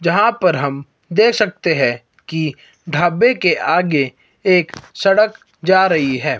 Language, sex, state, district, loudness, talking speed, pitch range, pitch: Hindi, male, Himachal Pradesh, Shimla, -16 LUFS, 140 wpm, 145-195 Hz, 170 Hz